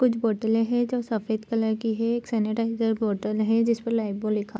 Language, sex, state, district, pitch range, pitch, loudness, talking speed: Hindi, female, Bihar, Supaul, 215-230 Hz, 225 Hz, -25 LUFS, 220 wpm